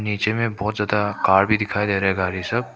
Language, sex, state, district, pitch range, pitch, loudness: Hindi, male, Arunachal Pradesh, Papum Pare, 95-110 Hz, 105 Hz, -20 LUFS